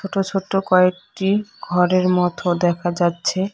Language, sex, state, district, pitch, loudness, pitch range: Bengali, female, West Bengal, Cooch Behar, 185 Hz, -19 LUFS, 175-195 Hz